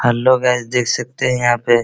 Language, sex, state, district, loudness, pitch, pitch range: Hindi, male, Bihar, Araria, -16 LUFS, 125 Hz, 120-125 Hz